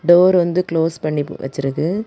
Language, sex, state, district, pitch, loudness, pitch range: Tamil, female, Tamil Nadu, Kanyakumari, 165 Hz, -17 LUFS, 150-175 Hz